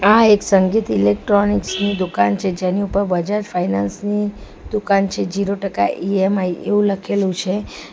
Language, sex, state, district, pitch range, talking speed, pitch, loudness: Gujarati, female, Gujarat, Valsad, 185-205 Hz, 150 wpm, 195 Hz, -18 LUFS